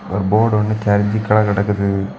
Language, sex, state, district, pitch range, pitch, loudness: Tamil, male, Tamil Nadu, Kanyakumari, 100-110 Hz, 105 Hz, -16 LUFS